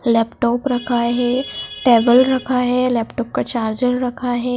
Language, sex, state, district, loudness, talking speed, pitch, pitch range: Hindi, female, Madhya Pradesh, Dhar, -18 LUFS, 145 wpm, 245 Hz, 235-250 Hz